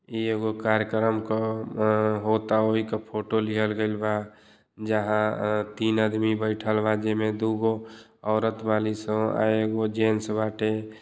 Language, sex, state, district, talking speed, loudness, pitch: Bhojpuri, male, Uttar Pradesh, Deoria, 135 wpm, -26 LUFS, 110 Hz